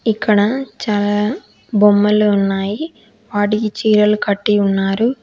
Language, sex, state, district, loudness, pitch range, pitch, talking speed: Telugu, female, Telangana, Hyderabad, -16 LUFS, 205-220 Hz, 210 Hz, 90 wpm